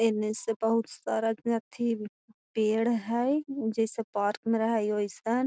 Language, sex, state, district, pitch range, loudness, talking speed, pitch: Magahi, female, Bihar, Gaya, 220-230 Hz, -29 LUFS, 140 wpm, 225 Hz